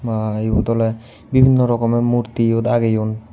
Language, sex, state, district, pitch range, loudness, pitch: Chakma, male, Tripura, Unakoti, 110-120 Hz, -17 LUFS, 115 Hz